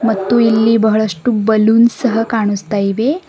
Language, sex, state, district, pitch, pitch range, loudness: Kannada, female, Karnataka, Bidar, 225 Hz, 215-230 Hz, -13 LUFS